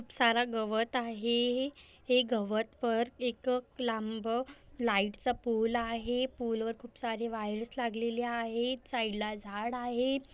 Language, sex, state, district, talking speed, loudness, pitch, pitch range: Marathi, female, Maharashtra, Aurangabad, 120 wpm, -33 LUFS, 235 Hz, 225-245 Hz